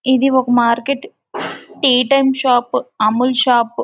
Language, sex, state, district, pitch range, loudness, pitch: Telugu, female, Andhra Pradesh, Visakhapatnam, 240-265 Hz, -15 LUFS, 250 Hz